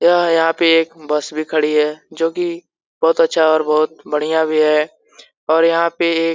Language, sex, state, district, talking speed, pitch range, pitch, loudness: Hindi, male, Bihar, Saran, 205 wpm, 155-165 Hz, 160 Hz, -16 LUFS